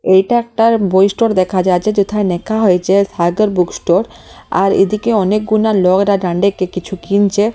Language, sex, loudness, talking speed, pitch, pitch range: Bengali, female, -14 LUFS, 150 wpm, 200 Hz, 185-215 Hz